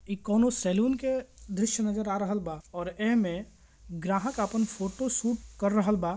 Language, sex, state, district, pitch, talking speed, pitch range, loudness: Bhojpuri, male, Bihar, Gopalganj, 210 Hz, 175 wpm, 195-230 Hz, -29 LUFS